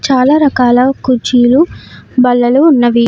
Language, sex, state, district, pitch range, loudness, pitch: Telugu, female, Karnataka, Bellary, 245-275 Hz, -10 LUFS, 255 Hz